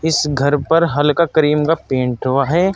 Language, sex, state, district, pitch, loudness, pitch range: Hindi, male, Uttar Pradesh, Saharanpur, 150 Hz, -16 LUFS, 140-165 Hz